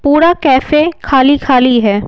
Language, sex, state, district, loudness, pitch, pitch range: Hindi, female, Bihar, Patna, -10 LUFS, 280 Hz, 255-310 Hz